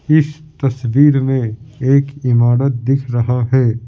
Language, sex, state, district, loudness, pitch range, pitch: Hindi, male, Bihar, Patna, -15 LUFS, 120-140 Hz, 130 Hz